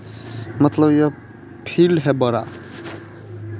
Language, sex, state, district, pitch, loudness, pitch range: Hindi, male, Bihar, West Champaran, 115 Hz, -18 LUFS, 115-140 Hz